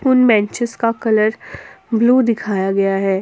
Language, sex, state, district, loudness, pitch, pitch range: Hindi, female, Jharkhand, Ranchi, -16 LUFS, 225 Hz, 200-240 Hz